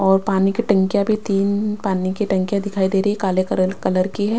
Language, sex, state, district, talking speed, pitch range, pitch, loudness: Hindi, female, Chhattisgarh, Raipur, 245 wpm, 190-205 Hz, 195 Hz, -19 LUFS